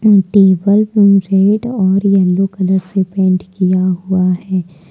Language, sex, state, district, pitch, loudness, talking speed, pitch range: Hindi, female, Jharkhand, Deoghar, 190 Hz, -13 LUFS, 135 wpm, 185-200 Hz